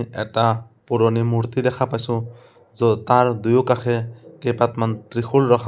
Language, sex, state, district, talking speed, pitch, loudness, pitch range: Assamese, male, Assam, Sonitpur, 125 wpm, 120 Hz, -20 LUFS, 115-125 Hz